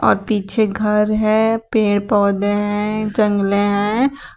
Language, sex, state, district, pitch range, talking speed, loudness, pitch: Hindi, female, Uttar Pradesh, Shamli, 205-220 Hz, 125 wpm, -17 LUFS, 210 Hz